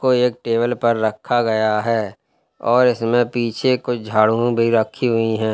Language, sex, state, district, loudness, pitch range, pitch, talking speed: Hindi, male, Uttar Pradesh, Lalitpur, -18 LUFS, 110-120 Hz, 115 Hz, 175 wpm